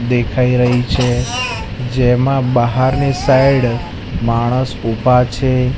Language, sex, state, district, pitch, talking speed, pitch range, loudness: Gujarati, male, Gujarat, Gandhinagar, 125 Hz, 95 wpm, 120-130 Hz, -15 LUFS